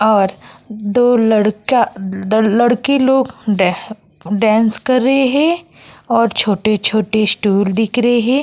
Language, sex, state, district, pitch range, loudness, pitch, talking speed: Hindi, female, Uttar Pradesh, Jyotiba Phule Nagar, 210-245 Hz, -14 LUFS, 220 Hz, 115 wpm